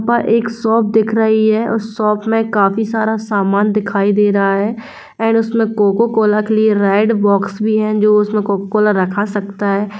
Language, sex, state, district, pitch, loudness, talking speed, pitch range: Hindi, female, Jharkhand, Jamtara, 215 Hz, -14 LUFS, 200 wpm, 205-225 Hz